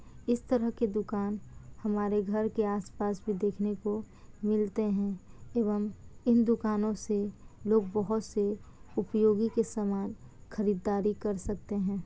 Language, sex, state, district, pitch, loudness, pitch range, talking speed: Hindi, female, Bihar, Kishanganj, 210 Hz, -31 LUFS, 205-220 Hz, 135 wpm